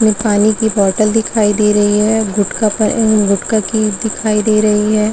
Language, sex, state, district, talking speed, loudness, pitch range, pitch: Hindi, female, Chhattisgarh, Balrampur, 210 wpm, -13 LUFS, 210-220 Hz, 215 Hz